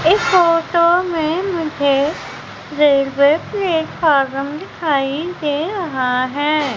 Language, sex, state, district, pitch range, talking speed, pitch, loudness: Hindi, female, Madhya Pradesh, Umaria, 280-340 Hz, 90 wpm, 305 Hz, -17 LUFS